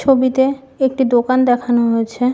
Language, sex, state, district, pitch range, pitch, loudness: Bengali, female, West Bengal, Malda, 245-265 Hz, 255 Hz, -15 LUFS